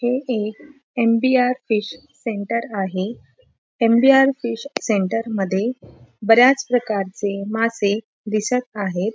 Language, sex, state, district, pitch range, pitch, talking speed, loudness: Marathi, female, Maharashtra, Pune, 205-250 Hz, 225 Hz, 100 wpm, -20 LUFS